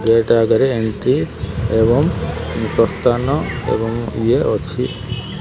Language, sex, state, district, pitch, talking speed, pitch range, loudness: Odia, male, Odisha, Malkangiri, 115 Hz, 90 wpm, 110-115 Hz, -17 LUFS